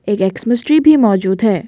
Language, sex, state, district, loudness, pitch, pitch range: Hindi, female, Assam, Kamrup Metropolitan, -12 LUFS, 210 Hz, 190-240 Hz